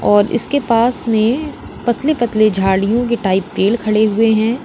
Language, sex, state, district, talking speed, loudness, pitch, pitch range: Hindi, female, Uttar Pradesh, Lalitpur, 170 wpm, -15 LUFS, 225 Hz, 210-240 Hz